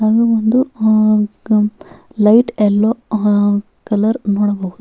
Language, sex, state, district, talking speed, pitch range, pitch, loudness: Kannada, female, Karnataka, Bellary, 100 wpm, 210-225 Hz, 215 Hz, -15 LUFS